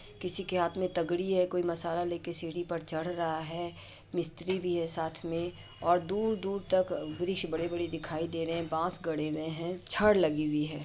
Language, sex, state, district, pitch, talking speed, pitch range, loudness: Hindi, female, Bihar, Madhepura, 170 Hz, 210 wpm, 165-180 Hz, -32 LUFS